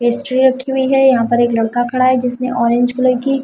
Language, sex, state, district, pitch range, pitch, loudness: Hindi, female, Delhi, New Delhi, 240-265 Hz, 255 Hz, -14 LUFS